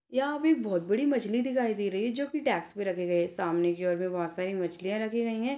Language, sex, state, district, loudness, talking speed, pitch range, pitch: Hindi, female, Bihar, Purnia, -30 LUFS, 270 wpm, 180-255 Hz, 210 Hz